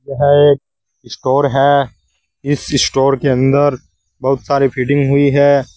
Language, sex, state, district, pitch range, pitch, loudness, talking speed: Hindi, male, Uttar Pradesh, Saharanpur, 130-140 Hz, 135 Hz, -13 LUFS, 125 wpm